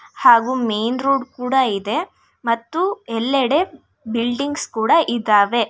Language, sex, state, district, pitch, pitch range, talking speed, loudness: Kannada, female, Karnataka, Bangalore, 255 Hz, 230-290 Hz, 105 wpm, -19 LUFS